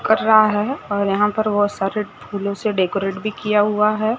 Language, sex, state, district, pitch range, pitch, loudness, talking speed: Hindi, female, Maharashtra, Gondia, 200-215 Hz, 210 Hz, -19 LUFS, 200 wpm